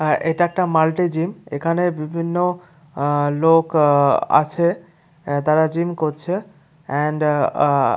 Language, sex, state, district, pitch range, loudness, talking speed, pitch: Bengali, male, West Bengal, Paschim Medinipur, 150-175 Hz, -19 LUFS, 120 wpm, 160 Hz